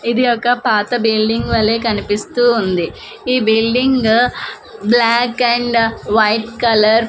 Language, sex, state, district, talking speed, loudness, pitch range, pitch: Telugu, female, Andhra Pradesh, Manyam, 120 wpm, -15 LUFS, 220-240 Hz, 230 Hz